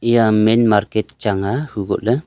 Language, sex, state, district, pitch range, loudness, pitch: Wancho, male, Arunachal Pradesh, Longding, 105-115 Hz, -17 LUFS, 110 Hz